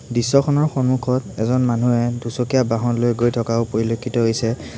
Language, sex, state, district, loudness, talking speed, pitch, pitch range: Assamese, male, Assam, Sonitpur, -19 LUFS, 140 wpm, 120 Hz, 115-125 Hz